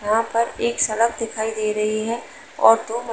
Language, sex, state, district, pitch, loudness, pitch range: Hindi, female, Uttar Pradesh, Jalaun, 225 Hz, -21 LUFS, 215-230 Hz